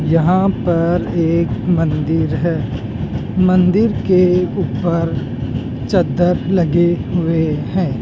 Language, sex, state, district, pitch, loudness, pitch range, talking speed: Hindi, male, Rajasthan, Jaipur, 170 Hz, -16 LUFS, 160-180 Hz, 90 wpm